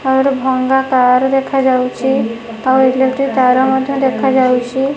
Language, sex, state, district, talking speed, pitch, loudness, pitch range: Odia, female, Odisha, Nuapada, 120 wpm, 265 Hz, -13 LUFS, 255-265 Hz